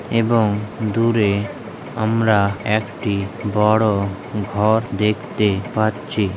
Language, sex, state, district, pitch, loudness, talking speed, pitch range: Bengali, male, West Bengal, Jalpaiguri, 105 Hz, -19 LUFS, 75 wpm, 100-110 Hz